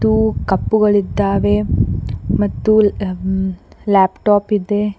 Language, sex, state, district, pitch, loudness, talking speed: Kannada, female, Karnataka, Koppal, 190 Hz, -16 LUFS, 60 wpm